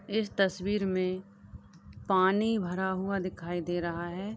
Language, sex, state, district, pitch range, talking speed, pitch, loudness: Hindi, female, Uttar Pradesh, Deoria, 180-200 Hz, 140 wpm, 190 Hz, -30 LUFS